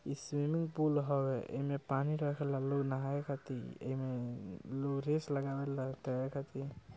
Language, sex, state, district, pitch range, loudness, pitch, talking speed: Bhojpuri, male, Bihar, Gopalganj, 130-140 Hz, -38 LUFS, 140 Hz, 145 wpm